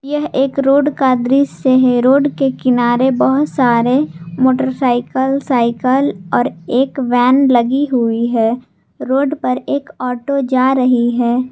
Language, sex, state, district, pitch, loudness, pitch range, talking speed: Hindi, female, Jharkhand, Garhwa, 260 Hz, -14 LUFS, 245-275 Hz, 135 wpm